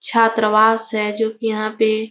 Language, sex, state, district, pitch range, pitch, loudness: Hindi, female, Bihar, Jahanabad, 215-225 Hz, 220 Hz, -17 LUFS